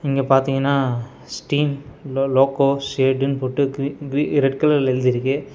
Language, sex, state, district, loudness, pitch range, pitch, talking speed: Tamil, male, Tamil Nadu, Nilgiris, -20 LUFS, 135-140 Hz, 135 Hz, 130 wpm